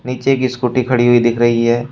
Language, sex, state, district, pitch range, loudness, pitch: Hindi, male, Uttar Pradesh, Shamli, 120-130 Hz, -14 LUFS, 125 Hz